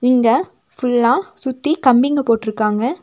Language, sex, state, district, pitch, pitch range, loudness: Tamil, female, Tamil Nadu, Nilgiris, 255 Hz, 235-295 Hz, -17 LUFS